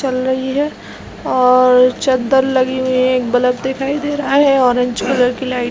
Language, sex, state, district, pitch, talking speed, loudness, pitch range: Hindi, female, Chhattisgarh, Raigarh, 260 Hz, 250 wpm, -14 LUFS, 250-265 Hz